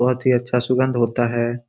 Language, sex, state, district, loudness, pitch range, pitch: Hindi, male, Bihar, Lakhisarai, -19 LUFS, 120-125 Hz, 125 Hz